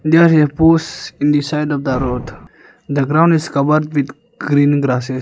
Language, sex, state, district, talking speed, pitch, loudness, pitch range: English, male, Arunachal Pradesh, Lower Dibang Valley, 185 wpm, 145 Hz, -15 LUFS, 135-155 Hz